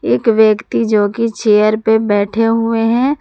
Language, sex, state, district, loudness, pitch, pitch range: Hindi, female, Jharkhand, Palamu, -13 LUFS, 220 Hz, 215-230 Hz